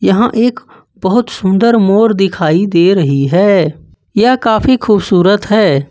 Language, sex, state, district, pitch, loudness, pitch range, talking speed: Hindi, male, Jharkhand, Ranchi, 200 Hz, -11 LUFS, 185-225 Hz, 130 wpm